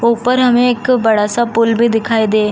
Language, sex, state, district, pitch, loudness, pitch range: Hindi, female, Uttar Pradesh, Jalaun, 235 Hz, -13 LUFS, 225-245 Hz